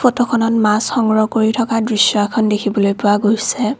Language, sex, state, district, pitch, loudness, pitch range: Assamese, female, Assam, Kamrup Metropolitan, 220 Hz, -15 LUFS, 210-230 Hz